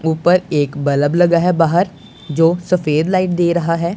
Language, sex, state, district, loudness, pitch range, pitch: Hindi, male, Punjab, Pathankot, -15 LUFS, 160-180 Hz, 170 Hz